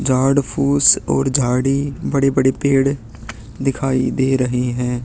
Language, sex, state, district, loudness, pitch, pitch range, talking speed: Hindi, male, Chhattisgarh, Sukma, -17 LUFS, 130 Hz, 125-135 Hz, 120 wpm